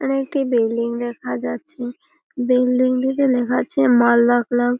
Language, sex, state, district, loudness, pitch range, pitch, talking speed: Bengali, female, West Bengal, Malda, -18 LUFS, 240-265 Hz, 245 Hz, 150 wpm